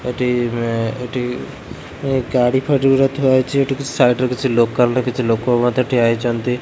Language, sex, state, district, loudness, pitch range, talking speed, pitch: Odia, male, Odisha, Khordha, -17 LUFS, 120-130 Hz, 190 wpm, 125 Hz